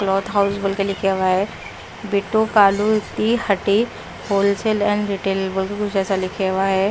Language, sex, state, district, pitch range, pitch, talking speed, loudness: Hindi, female, Punjab, Pathankot, 195-210 Hz, 200 Hz, 130 wpm, -19 LUFS